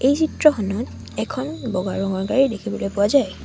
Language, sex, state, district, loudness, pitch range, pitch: Assamese, female, Assam, Sonitpur, -21 LUFS, 195-270 Hz, 220 Hz